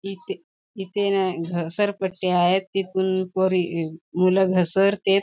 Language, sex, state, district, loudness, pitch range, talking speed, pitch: Marathi, female, Maharashtra, Chandrapur, -22 LUFS, 180-195 Hz, 115 wpm, 190 Hz